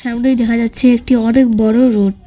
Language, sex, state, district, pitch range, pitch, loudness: Bengali, female, West Bengal, Cooch Behar, 230-250 Hz, 235 Hz, -12 LUFS